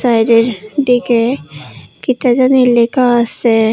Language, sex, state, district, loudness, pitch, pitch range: Bengali, female, Tripura, Unakoti, -12 LUFS, 235 Hz, 230-250 Hz